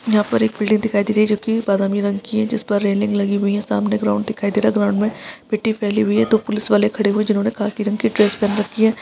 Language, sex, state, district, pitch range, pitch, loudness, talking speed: Hindi, female, Maharashtra, Sindhudurg, 205-215 Hz, 210 Hz, -18 LUFS, 280 wpm